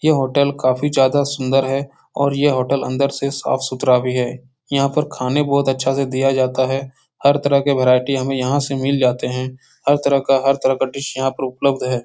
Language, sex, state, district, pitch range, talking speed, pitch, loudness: Hindi, male, Uttar Pradesh, Etah, 130-140 Hz, 220 wpm, 135 Hz, -18 LUFS